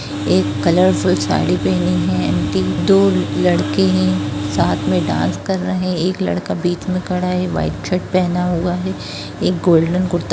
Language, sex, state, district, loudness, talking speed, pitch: Hindi, female, Bihar, Sitamarhi, -17 LUFS, 165 wpm, 175 Hz